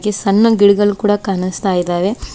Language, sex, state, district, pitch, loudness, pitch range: Kannada, female, Karnataka, Koppal, 200 Hz, -14 LUFS, 190-205 Hz